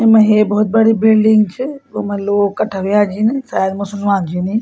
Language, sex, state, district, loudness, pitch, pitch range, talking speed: Garhwali, female, Uttarakhand, Tehri Garhwal, -14 LUFS, 210 Hz, 200-220 Hz, 195 wpm